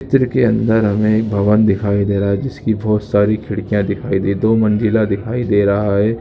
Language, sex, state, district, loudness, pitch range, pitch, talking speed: Hindi, male, Jharkhand, Jamtara, -16 LUFS, 100-110 Hz, 105 Hz, 210 wpm